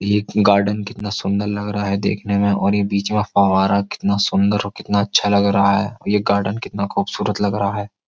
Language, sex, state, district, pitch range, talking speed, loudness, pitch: Hindi, male, Uttar Pradesh, Jyotiba Phule Nagar, 100-105 Hz, 225 wpm, -18 LUFS, 100 Hz